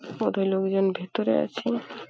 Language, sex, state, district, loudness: Bengali, female, West Bengal, Paschim Medinipur, -26 LUFS